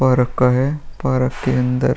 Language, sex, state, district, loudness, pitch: Hindi, male, Bihar, Vaishali, -18 LUFS, 120 Hz